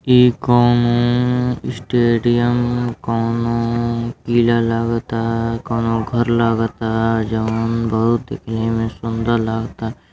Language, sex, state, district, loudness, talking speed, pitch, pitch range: Bhojpuri, male, Uttar Pradesh, Deoria, -18 LUFS, 85 wpm, 115 Hz, 115-120 Hz